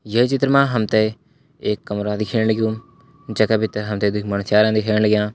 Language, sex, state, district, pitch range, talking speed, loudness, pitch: Garhwali, male, Uttarakhand, Uttarkashi, 105-115 Hz, 180 wpm, -19 LUFS, 110 Hz